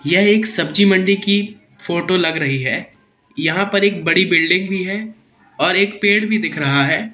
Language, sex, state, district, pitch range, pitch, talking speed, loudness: Hindi, male, Madhya Pradesh, Katni, 170-205 Hz, 195 Hz, 195 wpm, -16 LUFS